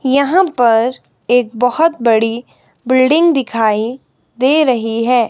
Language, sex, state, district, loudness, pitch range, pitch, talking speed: Hindi, female, Himachal Pradesh, Shimla, -13 LUFS, 230-275 Hz, 245 Hz, 115 wpm